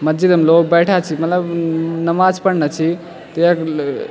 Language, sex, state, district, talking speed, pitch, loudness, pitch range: Garhwali, male, Uttarakhand, Tehri Garhwal, 145 wpm, 170 Hz, -15 LUFS, 160-175 Hz